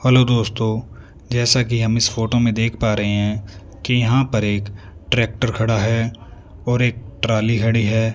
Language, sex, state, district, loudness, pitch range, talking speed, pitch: Hindi, male, Punjab, Fazilka, -19 LUFS, 105-120 Hz, 175 wpm, 115 Hz